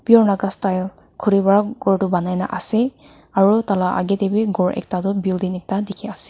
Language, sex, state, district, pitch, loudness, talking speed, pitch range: Nagamese, female, Nagaland, Kohima, 195 Hz, -19 LUFS, 210 wpm, 185-210 Hz